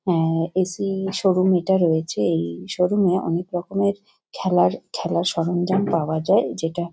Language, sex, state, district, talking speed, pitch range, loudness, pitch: Bengali, female, West Bengal, Kolkata, 145 wpm, 165-190 Hz, -21 LUFS, 180 Hz